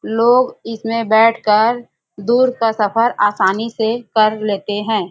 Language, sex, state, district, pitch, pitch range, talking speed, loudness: Hindi, female, Chhattisgarh, Bastar, 225 Hz, 210-230 Hz, 140 wpm, -16 LUFS